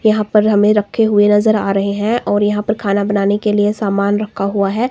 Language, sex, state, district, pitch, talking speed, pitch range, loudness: Hindi, female, Himachal Pradesh, Shimla, 210 Hz, 245 wpm, 200-215 Hz, -15 LUFS